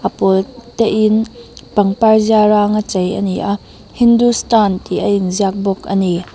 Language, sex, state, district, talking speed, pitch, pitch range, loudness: Mizo, female, Mizoram, Aizawl, 180 wpm, 205 Hz, 195-220 Hz, -14 LUFS